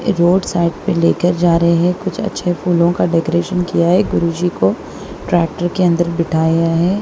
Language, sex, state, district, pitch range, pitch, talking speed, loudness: Hindi, female, Punjab, Kapurthala, 170-180 Hz, 175 Hz, 180 wpm, -15 LUFS